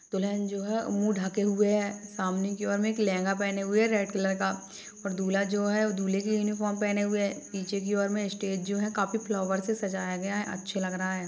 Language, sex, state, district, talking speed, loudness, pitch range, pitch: Hindi, female, Chhattisgarh, Bastar, 250 wpm, -29 LUFS, 195-210 Hz, 200 Hz